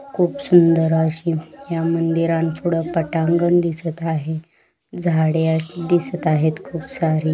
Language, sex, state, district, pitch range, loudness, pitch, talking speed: Marathi, female, Maharashtra, Pune, 160-170 Hz, -19 LUFS, 165 Hz, 120 wpm